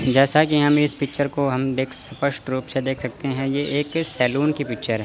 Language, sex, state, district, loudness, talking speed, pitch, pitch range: Hindi, male, Chandigarh, Chandigarh, -22 LUFS, 235 wpm, 140 Hz, 130-145 Hz